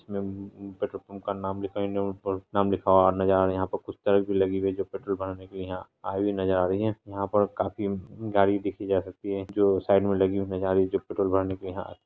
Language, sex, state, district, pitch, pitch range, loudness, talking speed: Hindi, female, Bihar, Saharsa, 95 Hz, 95-100 Hz, -27 LUFS, 290 wpm